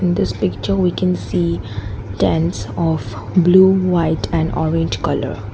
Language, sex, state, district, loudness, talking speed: English, female, Assam, Kamrup Metropolitan, -17 LUFS, 130 wpm